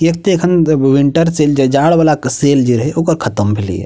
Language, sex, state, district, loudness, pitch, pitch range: Maithili, male, Bihar, Purnia, -12 LUFS, 145 Hz, 130-165 Hz